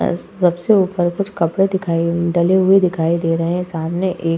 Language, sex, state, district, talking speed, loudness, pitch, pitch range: Hindi, female, Uttar Pradesh, Hamirpur, 205 wpm, -17 LUFS, 175 Hz, 165-190 Hz